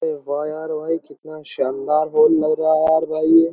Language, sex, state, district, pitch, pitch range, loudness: Hindi, male, Uttar Pradesh, Jyotiba Phule Nagar, 155 Hz, 155-160 Hz, -19 LUFS